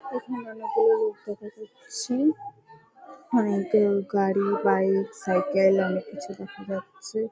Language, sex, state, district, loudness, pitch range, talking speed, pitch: Bengali, female, West Bengal, Jhargram, -25 LUFS, 195-270 Hz, 65 wpm, 215 Hz